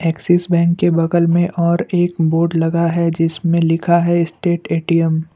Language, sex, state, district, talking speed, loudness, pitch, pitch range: Hindi, male, Assam, Kamrup Metropolitan, 170 wpm, -16 LUFS, 170 Hz, 165-170 Hz